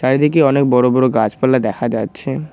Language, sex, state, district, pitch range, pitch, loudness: Bengali, male, West Bengal, Cooch Behar, 115-135 Hz, 130 Hz, -15 LUFS